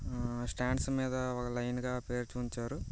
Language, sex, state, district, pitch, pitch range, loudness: Telugu, male, Andhra Pradesh, Visakhapatnam, 125 Hz, 120-125 Hz, -36 LUFS